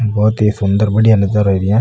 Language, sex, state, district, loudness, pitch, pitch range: Marwari, male, Rajasthan, Nagaur, -13 LUFS, 105 Hz, 100-110 Hz